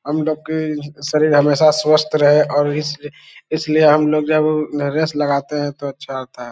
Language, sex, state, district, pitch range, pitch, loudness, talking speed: Hindi, male, Bihar, Lakhisarai, 145-155 Hz, 150 Hz, -16 LUFS, 155 wpm